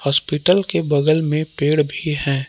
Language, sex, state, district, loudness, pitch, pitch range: Hindi, male, Jharkhand, Palamu, -18 LUFS, 150 Hz, 145-155 Hz